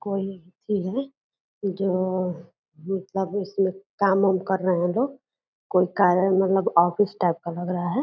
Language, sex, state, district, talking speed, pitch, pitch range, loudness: Angika, female, Bihar, Purnia, 150 wpm, 190 Hz, 180-200 Hz, -24 LUFS